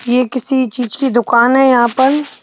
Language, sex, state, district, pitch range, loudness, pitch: Hindi, male, Madhya Pradesh, Bhopal, 240-265 Hz, -13 LUFS, 255 Hz